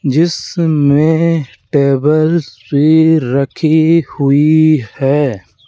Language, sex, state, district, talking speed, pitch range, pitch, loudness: Hindi, male, Rajasthan, Jaipur, 65 wpm, 140-160 Hz, 150 Hz, -12 LUFS